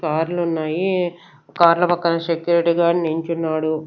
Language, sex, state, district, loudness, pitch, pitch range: Telugu, female, Andhra Pradesh, Sri Satya Sai, -19 LUFS, 170 Hz, 160-175 Hz